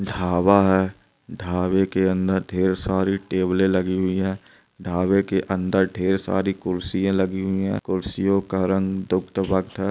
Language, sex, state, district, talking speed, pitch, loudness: Hindi, male, Andhra Pradesh, Anantapur, 145 wpm, 95 Hz, -22 LUFS